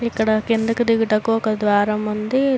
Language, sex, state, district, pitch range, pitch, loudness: Telugu, female, Andhra Pradesh, Srikakulam, 215-230 Hz, 220 Hz, -19 LUFS